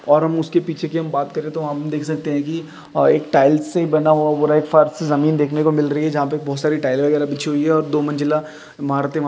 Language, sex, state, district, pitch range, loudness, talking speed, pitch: Hindi, male, Uttar Pradesh, Jyotiba Phule Nagar, 145-155 Hz, -18 LUFS, 265 wpm, 150 Hz